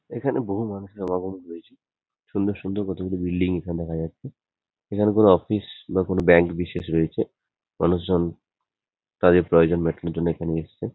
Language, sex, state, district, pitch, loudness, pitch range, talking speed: Bengali, male, West Bengal, Paschim Medinipur, 90 Hz, -23 LUFS, 85-95 Hz, 150 wpm